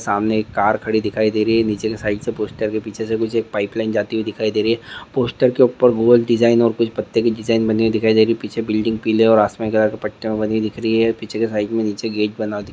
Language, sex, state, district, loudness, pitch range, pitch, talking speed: Hindi, male, Bihar, Madhepura, -18 LUFS, 110-115 Hz, 110 Hz, 300 wpm